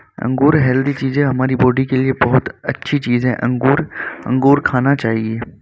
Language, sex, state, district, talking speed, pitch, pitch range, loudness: Hindi, male, Uttar Pradesh, Varanasi, 170 wpm, 130 Hz, 125-140 Hz, -16 LUFS